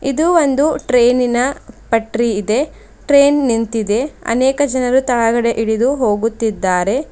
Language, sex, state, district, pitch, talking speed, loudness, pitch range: Kannada, female, Karnataka, Bidar, 245 Hz, 95 wpm, -15 LUFS, 225-275 Hz